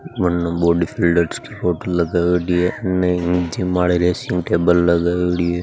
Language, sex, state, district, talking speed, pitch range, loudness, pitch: Marwari, male, Rajasthan, Nagaur, 140 wpm, 85-90 Hz, -18 LUFS, 90 Hz